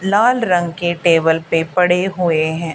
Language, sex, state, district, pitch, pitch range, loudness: Hindi, female, Haryana, Charkhi Dadri, 175 Hz, 165-180 Hz, -16 LUFS